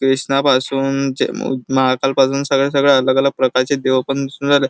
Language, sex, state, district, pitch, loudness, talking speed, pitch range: Marathi, male, Maharashtra, Chandrapur, 135 Hz, -16 LUFS, 155 wpm, 130-140 Hz